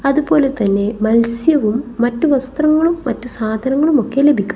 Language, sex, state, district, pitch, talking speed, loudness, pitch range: Malayalam, female, Kerala, Kasaragod, 260 Hz, 105 wpm, -15 LUFS, 225-295 Hz